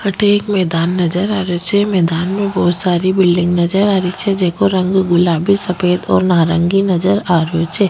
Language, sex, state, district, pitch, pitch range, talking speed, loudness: Rajasthani, female, Rajasthan, Nagaur, 185 Hz, 175-195 Hz, 195 wpm, -14 LUFS